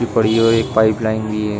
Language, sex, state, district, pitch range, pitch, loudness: Hindi, male, Uttar Pradesh, Hamirpur, 110-115 Hz, 110 Hz, -16 LUFS